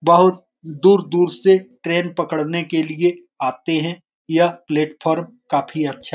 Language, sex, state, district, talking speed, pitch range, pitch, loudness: Hindi, male, Bihar, Saran, 145 wpm, 155-175 Hz, 170 Hz, -19 LUFS